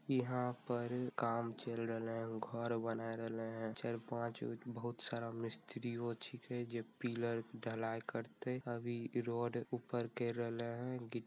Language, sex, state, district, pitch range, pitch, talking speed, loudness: Maithili, male, Bihar, Begusarai, 115-120 Hz, 115 Hz, 150 wpm, -42 LUFS